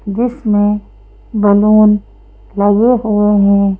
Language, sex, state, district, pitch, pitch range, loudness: Hindi, female, Madhya Pradesh, Bhopal, 210 Hz, 205-215 Hz, -12 LUFS